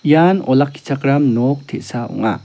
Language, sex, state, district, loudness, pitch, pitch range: Garo, male, Meghalaya, South Garo Hills, -16 LUFS, 140 Hz, 135-150 Hz